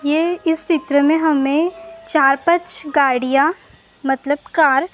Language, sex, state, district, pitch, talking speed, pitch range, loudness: Hindi, female, Maharashtra, Gondia, 305 Hz, 135 wpm, 280-330 Hz, -17 LUFS